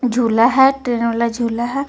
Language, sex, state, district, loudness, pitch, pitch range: Hindi, female, Jharkhand, Ranchi, -16 LUFS, 240 Hz, 235-260 Hz